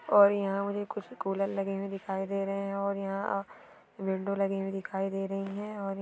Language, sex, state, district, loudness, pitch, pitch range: Hindi, female, Bihar, Sitamarhi, -32 LUFS, 195 Hz, 195-200 Hz